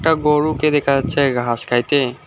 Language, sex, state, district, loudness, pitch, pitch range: Bengali, male, West Bengal, Alipurduar, -17 LUFS, 140 Hz, 125-150 Hz